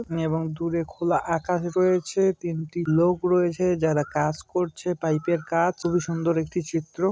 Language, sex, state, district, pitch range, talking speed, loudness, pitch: Bengali, male, West Bengal, Malda, 160-180 Hz, 150 wpm, -25 LUFS, 170 Hz